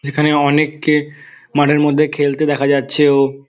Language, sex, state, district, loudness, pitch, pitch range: Bengali, male, West Bengal, Dakshin Dinajpur, -15 LUFS, 145 Hz, 140-150 Hz